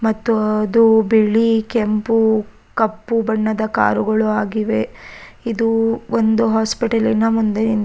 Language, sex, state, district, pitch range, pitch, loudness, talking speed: Kannada, female, Karnataka, Raichur, 215-225 Hz, 220 Hz, -17 LUFS, 100 wpm